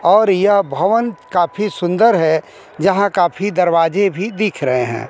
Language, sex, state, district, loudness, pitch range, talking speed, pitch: Hindi, male, Bihar, Kaimur, -15 LUFS, 165-205 Hz, 155 wpm, 195 Hz